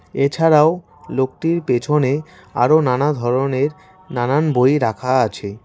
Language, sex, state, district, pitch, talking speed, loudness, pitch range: Bengali, male, West Bengal, Cooch Behar, 140 Hz, 105 wpm, -17 LUFS, 125-155 Hz